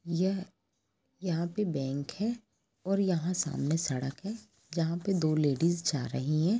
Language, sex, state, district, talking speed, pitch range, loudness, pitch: Hindi, female, Jharkhand, Jamtara, 145 wpm, 140-190 Hz, -31 LUFS, 165 Hz